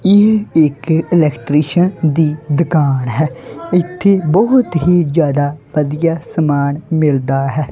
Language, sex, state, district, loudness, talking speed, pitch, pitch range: Punjabi, male, Punjab, Kapurthala, -14 LUFS, 110 wpm, 160 Hz, 145-175 Hz